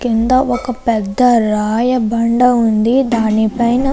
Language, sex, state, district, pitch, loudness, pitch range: Telugu, female, Andhra Pradesh, Anantapur, 235 Hz, -14 LUFS, 225-250 Hz